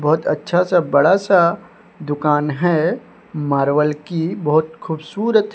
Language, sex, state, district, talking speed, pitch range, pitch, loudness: Hindi, male, Odisha, Sambalpur, 95 wpm, 150-180 Hz, 160 Hz, -18 LUFS